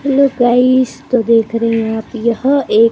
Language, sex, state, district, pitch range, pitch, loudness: Hindi, female, Himachal Pradesh, Shimla, 230-255 Hz, 235 Hz, -13 LUFS